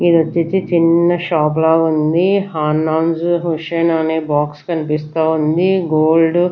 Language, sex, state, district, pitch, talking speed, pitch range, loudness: Telugu, female, Andhra Pradesh, Sri Satya Sai, 165 Hz, 130 wpm, 155-170 Hz, -15 LUFS